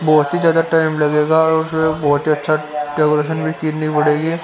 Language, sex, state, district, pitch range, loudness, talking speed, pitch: Hindi, male, Haryana, Rohtak, 150-160 Hz, -16 LUFS, 190 wpm, 155 Hz